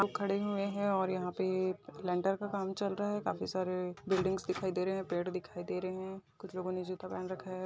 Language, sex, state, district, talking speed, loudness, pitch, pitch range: Hindi, female, Uttar Pradesh, Hamirpur, 250 wpm, -36 LUFS, 185 Hz, 185-195 Hz